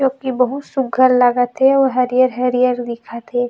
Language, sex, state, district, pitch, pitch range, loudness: Chhattisgarhi, female, Chhattisgarh, Rajnandgaon, 250 Hz, 245-265 Hz, -16 LUFS